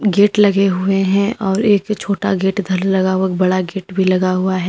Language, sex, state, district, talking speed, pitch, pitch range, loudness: Hindi, female, Uttar Pradesh, Lalitpur, 215 wpm, 195 Hz, 185-200 Hz, -16 LUFS